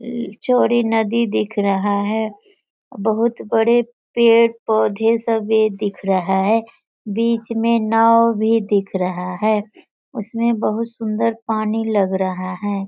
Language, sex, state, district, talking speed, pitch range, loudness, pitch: Hindi, female, Bihar, Sitamarhi, 130 wpm, 205-230 Hz, -18 LUFS, 220 Hz